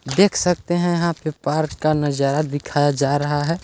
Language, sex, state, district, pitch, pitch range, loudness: Hindi, male, Chhattisgarh, Balrampur, 155 Hz, 145-170 Hz, -20 LUFS